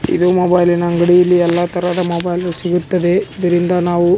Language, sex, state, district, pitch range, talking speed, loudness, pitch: Kannada, male, Karnataka, Raichur, 175-180 Hz, 155 wpm, -14 LUFS, 175 Hz